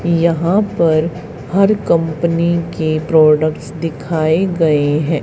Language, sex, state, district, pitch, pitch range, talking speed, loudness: Hindi, female, Haryana, Charkhi Dadri, 165 Hz, 155-170 Hz, 105 wpm, -15 LUFS